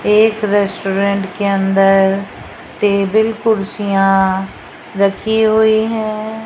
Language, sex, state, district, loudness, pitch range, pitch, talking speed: Hindi, female, Rajasthan, Jaipur, -14 LUFS, 195-220 Hz, 200 Hz, 85 wpm